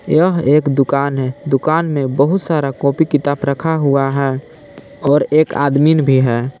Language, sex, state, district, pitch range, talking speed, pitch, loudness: Hindi, male, Jharkhand, Palamu, 135-155 Hz, 165 wpm, 140 Hz, -15 LUFS